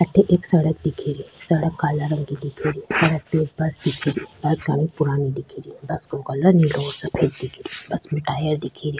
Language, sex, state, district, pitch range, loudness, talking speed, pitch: Rajasthani, female, Rajasthan, Churu, 145-160 Hz, -22 LUFS, 235 wpm, 155 Hz